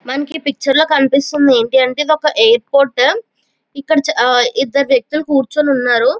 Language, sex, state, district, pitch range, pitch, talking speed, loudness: Telugu, female, Andhra Pradesh, Chittoor, 255-295 Hz, 275 Hz, 145 wpm, -13 LUFS